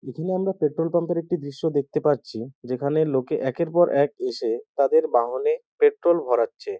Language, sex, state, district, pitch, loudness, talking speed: Bengali, male, West Bengal, North 24 Parganas, 170 Hz, -23 LUFS, 165 wpm